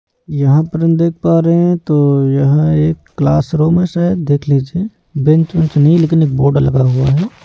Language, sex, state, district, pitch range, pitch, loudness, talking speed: Hindi, male, Odisha, Nuapada, 140-165 Hz, 155 Hz, -13 LUFS, 185 wpm